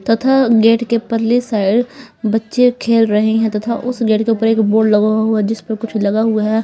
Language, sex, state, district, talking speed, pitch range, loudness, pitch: Hindi, female, Bihar, Patna, 225 wpm, 215-235 Hz, -15 LUFS, 225 Hz